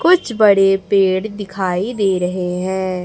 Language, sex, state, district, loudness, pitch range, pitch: Hindi, female, Chhattisgarh, Raipur, -16 LUFS, 185-205 Hz, 195 Hz